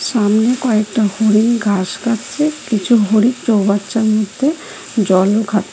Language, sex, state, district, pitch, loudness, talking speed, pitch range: Bengali, female, West Bengal, Cooch Behar, 220 Hz, -15 LUFS, 125 wpm, 205-235 Hz